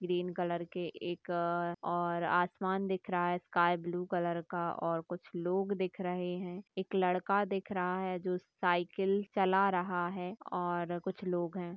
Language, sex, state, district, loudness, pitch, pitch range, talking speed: Hindi, female, Uttar Pradesh, Gorakhpur, -35 LUFS, 180 Hz, 175-190 Hz, 170 wpm